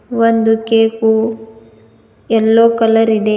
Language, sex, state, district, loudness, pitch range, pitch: Kannada, female, Karnataka, Bidar, -12 LUFS, 220-225 Hz, 225 Hz